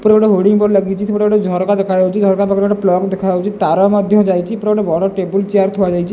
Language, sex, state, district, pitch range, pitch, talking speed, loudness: Odia, male, Odisha, Khordha, 190-205 Hz, 195 Hz, 215 wpm, -14 LUFS